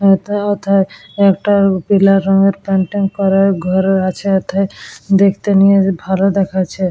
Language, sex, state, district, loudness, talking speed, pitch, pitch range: Bengali, female, West Bengal, Dakshin Dinajpur, -14 LUFS, 120 wpm, 195 Hz, 190-200 Hz